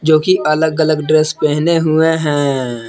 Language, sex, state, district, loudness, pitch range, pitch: Hindi, male, Jharkhand, Palamu, -14 LUFS, 150-160 Hz, 155 Hz